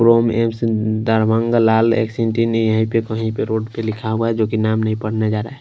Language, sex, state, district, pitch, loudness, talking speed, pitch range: Hindi, male, Punjab, Kapurthala, 110 Hz, -18 LUFS, 235 wpm, 110-115 Hz